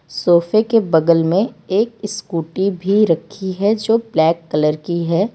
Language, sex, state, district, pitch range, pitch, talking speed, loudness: Hindi, female, Gujarat, Valsad, 170-210 Hz, 190 Hz, 155 wpm, -17 LUFS